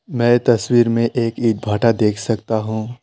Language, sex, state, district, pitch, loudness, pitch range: Hindi, male, West Bengal, Alipurduar, 115 Hz, -17 LUFS, 110-120 Hz